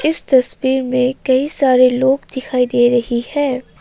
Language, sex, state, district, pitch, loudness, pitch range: Hindi, female, Assam, Kamrup Metropolitan, 260 Hz, -15 LUFS, 250-270 Hz